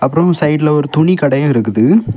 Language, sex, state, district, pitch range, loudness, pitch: Tamil, male, Tamil Nadu, Kanyakumari, 125-155 Hz, -12 LUFS, 145 Hz